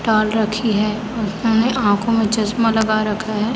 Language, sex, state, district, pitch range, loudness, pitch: Hindi, female, Chhattisgarh, Raipur, 215-225 Hz, -18 LUFS, 220 Hz